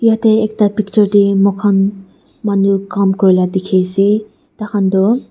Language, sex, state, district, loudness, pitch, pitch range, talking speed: Nagamese, female, Nagaland, Dimapur, -13 LUFS, 200 Hz, 195-215 Hz, 145 wpm